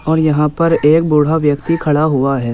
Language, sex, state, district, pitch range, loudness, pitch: Hindi, male, Uttar Pradesh, Muzaffarnagar, 145-160 Hz, -13 LUFS, 150 Hz